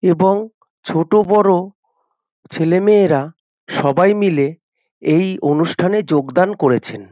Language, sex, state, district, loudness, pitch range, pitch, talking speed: Bengali, male, West Bengal, North 24 Parganas, -16 LUFS, 155-195 Hz, 180 Hz, 85 wpm